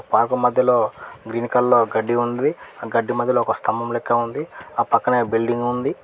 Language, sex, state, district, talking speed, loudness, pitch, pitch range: Telugu, male, Telangana, Mahabubabad, 180 wpm, -20 LUFS, 120 Hz, 120-125 Hz